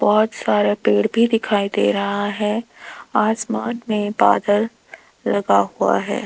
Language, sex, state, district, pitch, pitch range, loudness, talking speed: Hindi, female, Rajasthan, Jaipur, 210 Hz, 205-225 Hz, -19 LUFS, 135 wpm